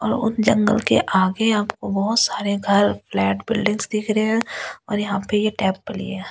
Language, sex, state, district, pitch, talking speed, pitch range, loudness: Hindi, female, Delhi, New Delhi, 205 Hz, 180 wpm, 195-215 Hz, -20 LUFS